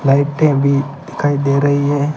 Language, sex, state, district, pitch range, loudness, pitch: Hindi, male, Rajasthan, Bikaner, 140-145 Hz, -15 LUFS, 145 Hz